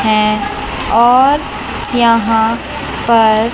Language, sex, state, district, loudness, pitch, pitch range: Hindi, female, Chandigarh, Chandigarh, -13 LUFS, 230 Hz, 220-240 Hz